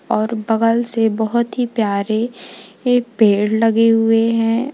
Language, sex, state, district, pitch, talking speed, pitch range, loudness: Hindi, female, Uttar Pradesh, Lalitpur, 225 Hz, 140 wpm, 220-235 Hz, -16 LUFS